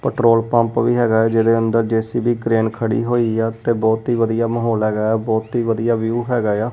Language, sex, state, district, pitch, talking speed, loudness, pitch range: Punjabi, male, Punjab, Kapurthala, 115 Hz, 205 wpm, -18 LUFS, 110-115 Hz